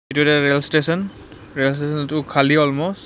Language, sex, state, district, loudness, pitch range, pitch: Assamese, male, Assam, Kamrup Metropolitan, -18 LUFS, 140-155 Hz, 145 Hz